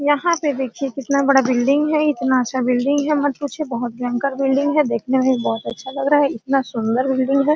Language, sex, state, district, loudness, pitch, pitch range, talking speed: Hindi, female, Bihar, Araria, -19 LUFS, 275 Hz, 255-285 Hz, 230 wpm